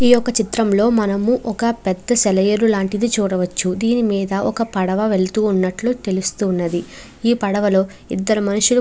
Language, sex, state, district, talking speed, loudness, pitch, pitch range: Telugu, female, Andhra Pradesh, Chittoor, 145 wpm, -18 LUFS, 205 Hz, 190-230 Hz